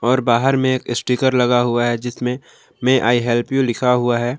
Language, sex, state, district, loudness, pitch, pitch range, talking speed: Hindi, male, Jharkhand, Palamu, -17 LUFS, 125 Hz, 120-130 Hz, 220 wpm